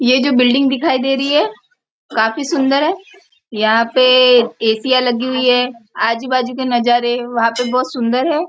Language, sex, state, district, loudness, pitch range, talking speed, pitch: Hindi, female, Maharashtra, Nagpur, -15 LUFS, 240-270 Hz, 175 wpm, 255 Hz